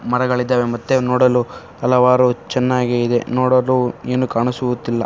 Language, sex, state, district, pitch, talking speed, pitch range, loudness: Kannada, male, Karnataka, Shimoga, 125 Hz, 105 wpm, 120-125 Hz, -17 LUFS